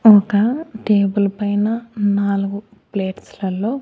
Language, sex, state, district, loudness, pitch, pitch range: Telugu, male, Andhra Pradesh, Annamaya, -19 LUFS, 205 Hz, 200-220 Hz